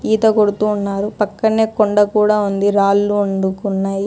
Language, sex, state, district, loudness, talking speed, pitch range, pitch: Telugu, female, Telangana, Hyderabad, -16 LUFS, 135 wpm, 200-215 Hz, 205 Hz